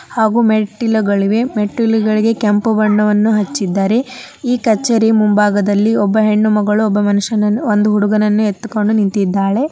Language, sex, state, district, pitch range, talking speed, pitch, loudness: Kannada, male, Karnataka, Dharwad, 205-225 Hz, 115 wpm, 215 Hz, -14 LUFS